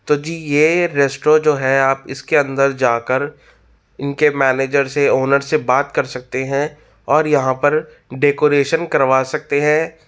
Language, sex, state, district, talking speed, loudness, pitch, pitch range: Hindi, male, Uttar Pradesh, Muzaffarnagar, 155 wpm, -16 LUFS, 145 Hz, 135-155 Hz